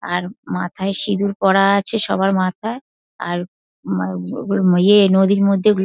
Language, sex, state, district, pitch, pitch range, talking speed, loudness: Bengali, female, West Bengal, Dakshin Dinajpur, 195 Hz, 180-200 Hz, 145 wpm, -17 LUFS